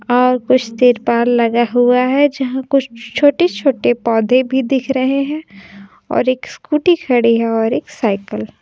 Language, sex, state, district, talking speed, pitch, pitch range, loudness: Hindi, female, Bihar, Kaimur, 160 wpm, 250 Hz, 230-265 Hz, -15 LUFS